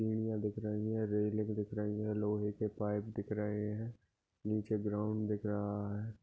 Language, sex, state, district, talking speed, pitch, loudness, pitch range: Hindi, male, Goa, North and South Goa, 185 wpm, 105 Hz, -38 LUFS, 105-110 Hz